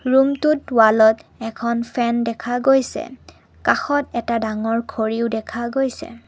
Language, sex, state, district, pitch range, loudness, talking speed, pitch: Assamese, female, Assam, Kamrup Metropolitan, 225-265 Hz, -19 LUFS, 115 wpm, 235 Hz